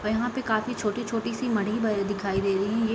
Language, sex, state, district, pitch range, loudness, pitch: Hindi, female, Bihar, Gopalganj, 205-230 Hz, -27 LUFS, 220 Hz